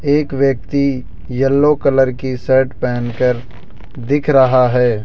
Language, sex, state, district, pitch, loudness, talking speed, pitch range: Hindi, male, Rajasthan, Jaipur, 130 Hz, -15 LUFS, 130 wpm, 125-140 Hz